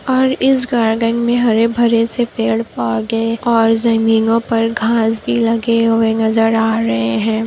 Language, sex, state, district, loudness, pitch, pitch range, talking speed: Hindi, female, Bihar, Kishanganj, -15 LUFS, 230 Hz, 225-235 Hz, 160 wpm